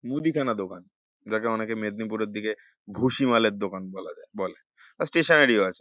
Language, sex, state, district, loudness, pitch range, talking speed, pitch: Bengali, male, West Bengal, North 24 Parganas, -25 LUFS, 105-120 Hz, 145 wpm, 110 Hz